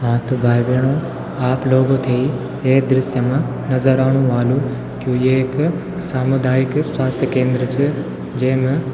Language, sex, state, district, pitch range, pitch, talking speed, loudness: Garhwali, male, Uttarakhand, Tehri Garhwal, 130-135 Hz, 130 Hz, 140 wpm, -17 LUFS